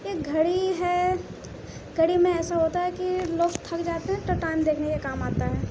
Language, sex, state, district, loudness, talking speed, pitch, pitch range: Hindi, female, Uttar Pradesh, Budaun, -26 LUFS, 210 wpm, 345 Hz, 325-360 Hz